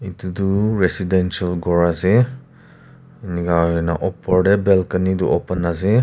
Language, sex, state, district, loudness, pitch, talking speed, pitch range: Nagamese, male, Nagaland, Kohima, -18 LUFS, 95 Hz, 130 wpm, 85-100 Hz